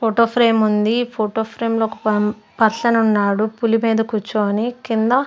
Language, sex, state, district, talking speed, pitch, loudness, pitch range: Telugu, female, Andhra Pradesh, Sri Satya Sai, 135 wpm, 225 Hz, -18 LUFS, 215-230 Hz